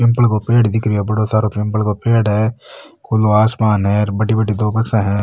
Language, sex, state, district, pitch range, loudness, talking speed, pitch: Marwari, male, Rajasthan, Nagaur, 105-110 Hz, -16 LUFS, 240 wpm, 110 Hz